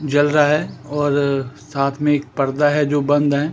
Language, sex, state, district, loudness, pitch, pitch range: Hindi, male, Chandigarh, Chandigarh, -18 LUFS, 145 Hz, 140-150 Hz